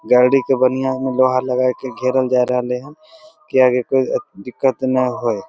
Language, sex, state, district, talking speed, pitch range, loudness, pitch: Maithili, male, Bihar, Begusarai, 195 wpm, 125-135 Hz, -17 LUFS, 130 Hz